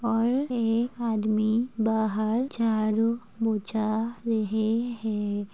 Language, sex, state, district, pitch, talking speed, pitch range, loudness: Hindi, female, Uttar Pradesh, Budaun, 225 Hz, 95 wpm, 215-235 Hz, -27 LUFS